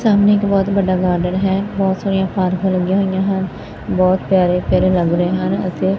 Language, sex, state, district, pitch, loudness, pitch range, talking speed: Punjabi, female, Punjab, Fazilka, 190 Hz, -16 LUFS, 185-195 Hz, 190 wpm